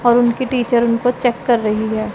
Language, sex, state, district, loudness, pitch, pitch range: Hindi, female, Punjab, Pathankot, -16 LUFS, 240 Hz, 225-245 Hz